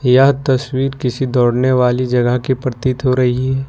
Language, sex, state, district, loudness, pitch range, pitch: Hindi, male, Jharkhand, Ranchi, -15 LUFS, 125-130 Hz, 130 Hz